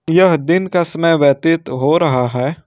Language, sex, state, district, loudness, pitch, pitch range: Hindi, male, Jharkhand, Ranchi, -14 LUFS, 165 Hz, 140-170 Hz